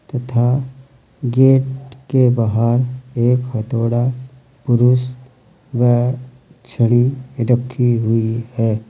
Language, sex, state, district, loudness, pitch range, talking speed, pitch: Hindi, male, Uttar Pradesh, Saharanpur, -17 LUFS, 120-130 Hz, 90 wpm, 125 Hz